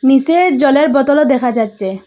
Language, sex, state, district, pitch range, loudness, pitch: Bengali, female, Assam, Hailakandi, 235-295 Hz, -12 LUFS, 275 Hz